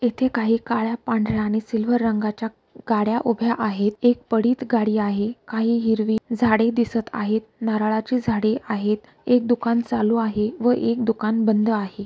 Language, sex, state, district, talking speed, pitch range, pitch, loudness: Marathi, female, Maharashtra, Solapur, 155 wpm, 215-235 Hz, 225 Hz, -22 LUFS